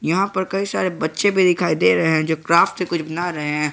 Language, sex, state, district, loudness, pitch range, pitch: Hindi, male, Jharkhand, Garhwa, -19 LUFS, 160-185 Hz, 170 Hz